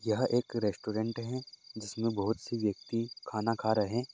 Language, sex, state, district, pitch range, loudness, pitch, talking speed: Hindi, male, Goa, North and South Goa, 110-120 Hz, -33 LUFS, 115 Hz, 175 wpm